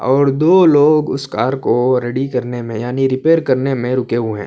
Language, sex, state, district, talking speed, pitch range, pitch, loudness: Urdu, male, Uttar Pradesh, Budaun, 215 wpm, 120-140 Hz, 130 Hz, -15 LUFS